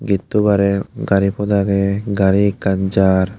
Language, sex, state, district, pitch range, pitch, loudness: Chakma, male, Tripura, Unakoti, 95-100 Hz, 100 Hz, -16 LUFS